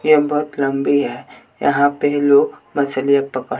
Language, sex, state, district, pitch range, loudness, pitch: Hindi, male, Bihar, West Champaran, 140-145 Hz, -17 LUFS, 145 Hz